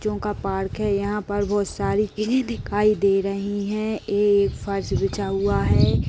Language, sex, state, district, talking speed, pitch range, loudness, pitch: Hindi, female, Uttar Pradesh, Deoria, 175 wpm, 195-210 Hz, -23 LUFS, 205 Hz